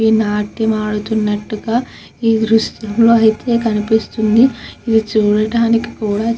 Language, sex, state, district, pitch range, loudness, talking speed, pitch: Telugu, female, Andhra Pradesh, Krishna, 215-230 Hz, -15 LUFS, 95 wpm, 220 Hz